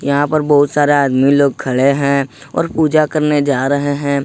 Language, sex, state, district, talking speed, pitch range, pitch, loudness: Hindi, male, Jharkhand, Ranchi, 210 wpm, 140-145 Hz, 145 Hz, -14 LUFS